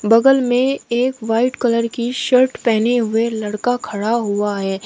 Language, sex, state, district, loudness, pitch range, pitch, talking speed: Hindi, female, Uttar Pradesh, Shamli, -17 LUFS, 220-245 Hz, 235 Hz, 160 wpm